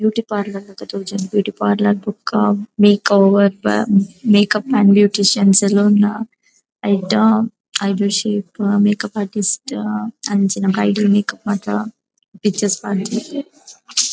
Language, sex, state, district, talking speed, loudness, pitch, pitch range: Tulu, female, Karnataka, Dakshina Kannada, 110 wpm, -16 LUFS, 205 Hz, 200-215 Hz